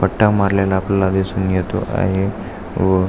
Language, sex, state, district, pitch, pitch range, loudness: Marathi, male, Maharashtra, Aurangabad, 95 Hz, 95-100 Hz, -18 LUFS